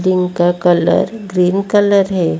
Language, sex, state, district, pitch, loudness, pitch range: Hindi, female, Odisha, Malkangiri, 185 Hz, -14 LUFS, 175-200 Hz